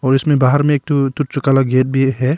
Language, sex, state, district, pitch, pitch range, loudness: Hindi, male, Arunachal Pradesh, Longding, 135 Hz, 130-145 Hz, -15 LUFS